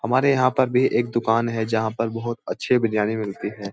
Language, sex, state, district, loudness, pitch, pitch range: Hindi, male, Uttar Pradesh, Jyotiba Phule Nagar, -22 LUFS, 115 Hz, 110-125 Hz